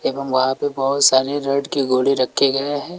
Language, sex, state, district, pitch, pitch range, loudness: Hindi, male, Bihar, West Champaran, 140 Hz, 130-140 Hz, -18 LUFS